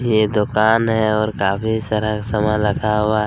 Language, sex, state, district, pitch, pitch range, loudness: Hindi, male, Chhattisgarh, Kabirdham, 110 Hz, 105-110 Hz, -18 LUFS